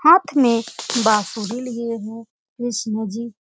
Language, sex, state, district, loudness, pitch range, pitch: Hindi, female, Uttar Pradesh, Etah, -20 LUFS, 220-240 Hz, 230 Hz